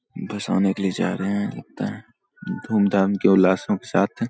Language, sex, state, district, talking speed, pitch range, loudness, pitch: Hindi, male, Bihar, Saharsa, 195 wpm, 95-100 Hz, -22 LUFS, 100 Hz